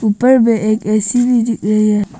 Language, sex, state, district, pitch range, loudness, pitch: Hindi, female, Arunachal Pradesh, Papum Pare, 215-240 Hz, -13 LUFS, 215 Hz